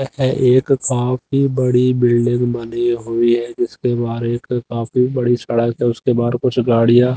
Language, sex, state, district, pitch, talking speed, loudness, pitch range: Hindi, male, Haryana, Jhajjar, 120 Hz, 160 wpm, -17 LUFS, 120-125 Hz